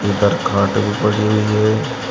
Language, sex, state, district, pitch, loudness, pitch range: Hindi, male, Uttar Pradesh, Shamli, 105 Hz, -16 LUFS, 100-105 Hz